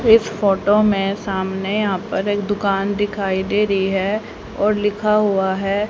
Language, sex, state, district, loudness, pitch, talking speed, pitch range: Hindi, female, Haryana, Jhajjar, -19 LUFS, 205 Hz, 165 wpm, 195-210 Hz